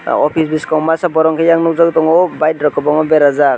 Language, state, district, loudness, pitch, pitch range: Kokborok, Tripura, West Tripura, -12 LUFS, 160 Hz, 155-165 Hz